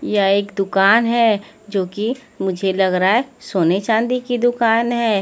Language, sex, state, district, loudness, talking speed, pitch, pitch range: Hindi, female, Haryana, Rohtak, -18 LUFS, 170 wpm, 215 Hz, 195-235 Hz